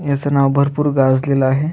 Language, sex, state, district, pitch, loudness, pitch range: Marathi, male, Maharashtra, Aurangabad, 140 Hz, -15 LUFS, 135-145 Hz